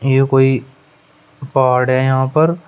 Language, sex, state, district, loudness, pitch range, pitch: Hindi, male, Uttar Pradesh, Shamli, -14 LUFS, 130-150 Hz, 135 Hz